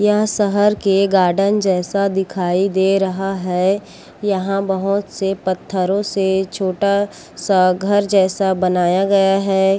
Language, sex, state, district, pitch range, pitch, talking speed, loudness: Chhattisgarhi, female, Chhattisgarh, Korba, 190-200 Hz, 195 Hz, 130 wpm, -17 LUFS